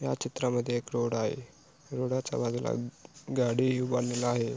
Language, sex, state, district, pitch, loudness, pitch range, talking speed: Marathi, male, Maharashtra, Sindhudurg, 120 Hz, -31 LUFS, 120-130 Hz, 145 wpm